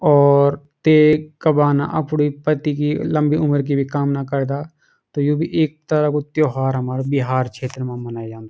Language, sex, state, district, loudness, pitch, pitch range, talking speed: Garhwali, male, Uttarakhand, Uttarkashi, -18 LUFS, 145 Hz, 135-150 Hz, 185 wpm